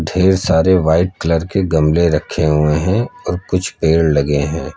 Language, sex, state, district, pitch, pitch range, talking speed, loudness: Hindi, male, Uttar Pradesh, Lucknow, 85 Hz, 80-90 Hz, 175 wpm, -15 LUFS